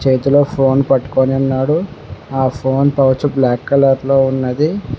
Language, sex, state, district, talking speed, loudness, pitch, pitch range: Telugu, male, Telangana, Mahabubabad, 130 wpm, -14 LUFS, 135 Hz, 130-140 Hz